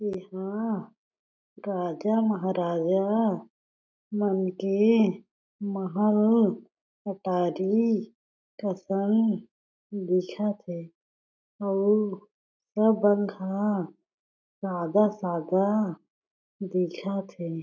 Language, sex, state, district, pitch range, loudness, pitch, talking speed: Chhattisgarhi, female, Chhattisgarh, Jashpur, 185-210 Hz, -27 LUFS, 195 Hz, 60 wpm